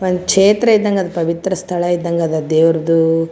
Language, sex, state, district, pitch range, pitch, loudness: Kannada, female, Karnataka, Gulbarga, 165-190 Hz, 175 Hz, -15 LUFS